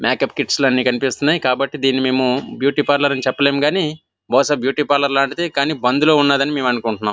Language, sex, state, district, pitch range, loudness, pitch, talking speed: Telugu, male, Andhra Pradesh, Visakhapatnam, 130-145 Hz, -17 LUFS, 140 Hz, 175 wpm